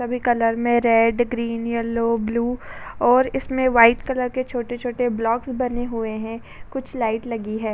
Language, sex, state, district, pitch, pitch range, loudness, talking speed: Hindi, female, Uttar Pradesh, Budaun, 240 Hz, 230-250 Hz, -21 LUFS, 165 wpm